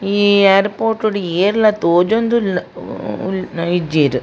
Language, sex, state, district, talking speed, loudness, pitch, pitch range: Tulu, female, Karnataka, Dakshina Kannada, 125 wpm, -15 LUFS, 195 Hz, 175-215 Hz